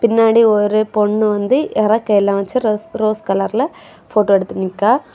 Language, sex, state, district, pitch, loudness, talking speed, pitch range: Tamil, female, Tamil Nadu, Kanyakumari, 215 Hz, -15 LUFS, 150 wpm, 205-230 Hz